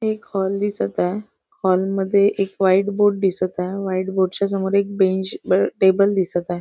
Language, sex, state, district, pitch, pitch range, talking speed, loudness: Marathi, female, Maharashtra, Nagpur, 195 Hz, 185-200 Hz, 180 wpm, -20 LUFS